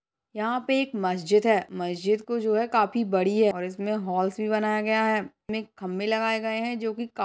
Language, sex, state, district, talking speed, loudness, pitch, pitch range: Hindi, male, Uttar Pradesh, Hamirpur, 230 wpm, -26 LUFS, 215 Hz, 195-225 Hz